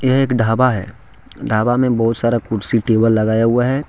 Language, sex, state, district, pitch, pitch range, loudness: Hindi, male, Jharkhand, Deoghar, 115 Hz, 110-125 Hz, -16 LUFS